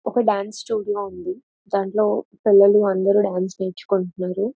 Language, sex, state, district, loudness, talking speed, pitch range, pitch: Telugu, female, Andhra Pradesh, Visakhapatnam, -20 LUFS, 120 wpm, 190-210 Hz, 200 Hz